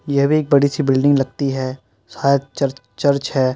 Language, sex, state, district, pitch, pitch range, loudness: Hindi, male, Uttar Pradesh, Muzaffarnagar, 140 Hz, 130-140 Hz, -18 LUFS